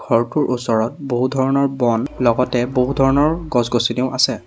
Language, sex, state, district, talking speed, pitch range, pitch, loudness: Assamese, male, Assam, Sonitpur, 135 wpm, 120-135 Hz, 125 Hz, -18 LUFS